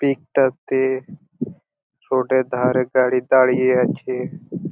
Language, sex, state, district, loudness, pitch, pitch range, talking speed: Bengali, male, West Bengal, Purulia, -19 LUFS, 130 Hz, 130-160 Hz, 100 wpm